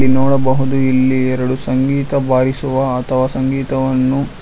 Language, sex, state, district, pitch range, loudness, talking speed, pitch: Kannada, male, Karnataka, Bangalore, 130-135 Hz, -15 LUFS, 110 wpm, 130 Hz